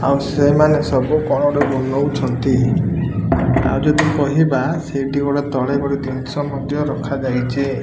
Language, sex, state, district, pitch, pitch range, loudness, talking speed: Odia, male, Odisha, Malkangiri, 140 Hz, 135-145 Hz, -17 LUFS, 130 wpm